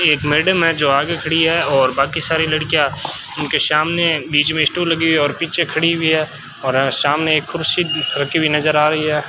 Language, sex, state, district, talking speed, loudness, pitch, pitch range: Hindi, male, Rajasthan, Bikaner, 225 wpm, -16 LUFS, 155 Hz, 145-165 Hz